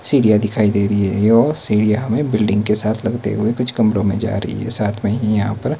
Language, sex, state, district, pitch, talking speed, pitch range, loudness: Hindi, male, Himachal Pradesh, Shimla, 110 Hz, 270 wpm, 105-115 Hz, -17 LUFS